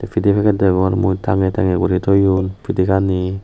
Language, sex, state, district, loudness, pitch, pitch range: Chakma, male, Tripura, West Tripura, -16 LUFS, 95 Hz, 95-100 Hz